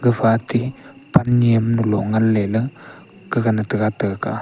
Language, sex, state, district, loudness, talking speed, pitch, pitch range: Wancho, male, Arunachal Pradesh, Longding, -19 LUFS, 135 wpm, 115 Hz, 110-120 Hz